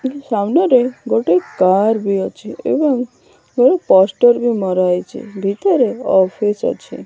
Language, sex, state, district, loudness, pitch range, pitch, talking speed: Odia, female, Odisha, Malkangiri, -15 LUFS, 190-245 Hz, 210 Hz, 120 wpm